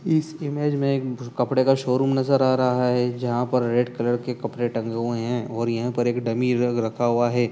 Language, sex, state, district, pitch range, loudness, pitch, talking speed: Hindi, male, Uttar Pradesh, Etah, 120-130 Hz, -23 LUFS, 125 Hz, 240 wpm